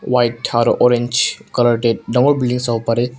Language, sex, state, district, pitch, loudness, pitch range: Nagamese, male, Nagaland, Kohima, 120 Hz, -16 LUFS, 115-125 Hz